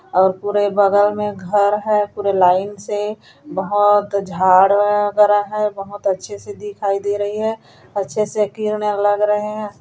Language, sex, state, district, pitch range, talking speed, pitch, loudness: Chhattisgarhi, female, Chhattisgarh, Korba, 200-210 Hz, 155 wpm, 205 Hz, -17 LUFS